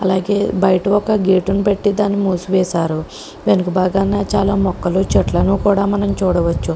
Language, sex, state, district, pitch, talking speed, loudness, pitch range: Telugu, female, Andhra Pradesh, Krishna, 195 Hz, 135 wpm, -16 LUFS, 185-200 Hz